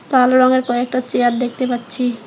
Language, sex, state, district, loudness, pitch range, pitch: Bengali, male, West Bengal, Alipurduar, -16 LUFS, 240-255 Hz, 250 Hz